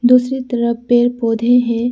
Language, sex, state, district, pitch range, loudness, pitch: Hindi, female, Arunachal Pradesh, Lower Dibang Valley, 235-245 Hz, -15 LUFS, 240 Hz